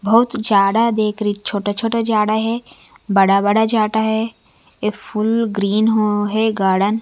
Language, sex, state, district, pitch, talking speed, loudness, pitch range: Hindi, female, Chhattisgarh, Raipur, 215 Hz, 160 wpm, -17 LUFS, 205-225 Hz